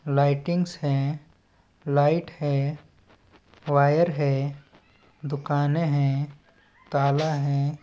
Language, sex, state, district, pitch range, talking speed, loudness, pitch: Chhattisgarhi, male, Chhattisgarh, Balrampur, 135-150 Hz, 75 wpm, -25 LUFS, 140 Hz